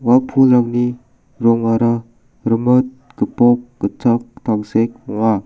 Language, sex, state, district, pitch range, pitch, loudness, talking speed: Garo, male, Meghalaya, South Garo Hills, 115-125 Hz, 120 Hz, -16 LUFS, 90 wpm